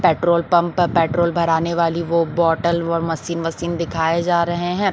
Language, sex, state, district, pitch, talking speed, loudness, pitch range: Hindi, female, Bihar, Patna, 170 Hz, 185 wpm, -19 LUFS, 165-170 Hz